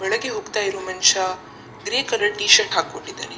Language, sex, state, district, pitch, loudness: Kannada, female, Karnataka, Dakshina Kannada, 210 Hz, -19 LUFS